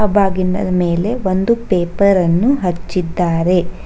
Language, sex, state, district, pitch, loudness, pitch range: Kannada, female, Karnataka, Bangalore, 185 Hz, -16 LUFS, 175-200 Hz